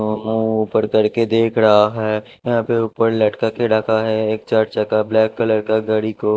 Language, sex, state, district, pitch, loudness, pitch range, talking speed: Hindi, male, Punjab, Kapurthala, 110 Hz, -17 LUFS, 110-115 Hz, 195 wpm